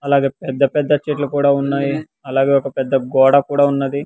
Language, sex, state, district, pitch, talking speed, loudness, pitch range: Telugu, male, Andhra Pradesh, Sri Satya Sai, 140 Hz, 175 wpm, -16 LUFS, 135-145 Hz